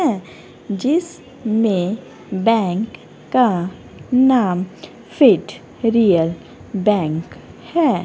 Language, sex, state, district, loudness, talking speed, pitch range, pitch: Hindi, female, Haryana, Rohtak, -18 LUFS, 65 wpm, 185-250 Hz, 215 Hz